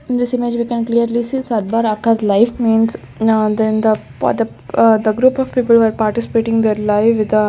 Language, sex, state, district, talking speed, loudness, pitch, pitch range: English, female, Chandigarh, Chandigarh, 185 wpm, -15 LUFS, 225 Hz, 215-235 Hz